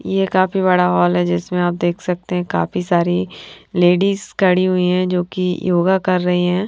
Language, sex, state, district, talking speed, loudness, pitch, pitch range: Hindi, female, Himachal Pradesh, Shimla, 180 wpm, -17 LUFS, 180 Hz, 175-185 Hz